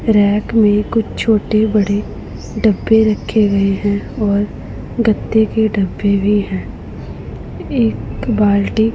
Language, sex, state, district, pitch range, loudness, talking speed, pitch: Hindi, female, Punjab, Pathankot, 200-220 Hz, -15 LUFS, 115 wpm, 210 Hz